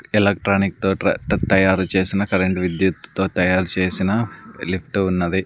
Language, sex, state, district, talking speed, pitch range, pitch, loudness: Telugu, male, Andhra Pradesh, Sri Satya Sai, 110 wpm, 90-100 Hz, 95 Hz, -19 LUFS